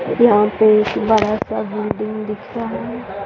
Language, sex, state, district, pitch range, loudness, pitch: Hindi, female, Bihar, Sitamarhi, 210-220 Hz, -17 LUFS, 215 Hz